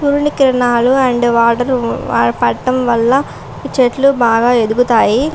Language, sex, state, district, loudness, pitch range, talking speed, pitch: Telugu, female, Andhra Pradesh, Srikakulam, -13 LUFS, 235-265 Hz, 90 wpm, 245 Hz